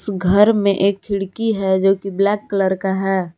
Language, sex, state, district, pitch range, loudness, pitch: Hindi, female, Jharkhand, Garhwa, 190-205 Hz, -17 LUFS, 195 Hz